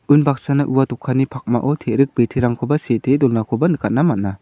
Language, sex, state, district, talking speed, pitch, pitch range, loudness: Garo, male, Meghalaya, South Garo Hills, 135 wpm, 135 Hz, 120-145 Hz, -18 LUFS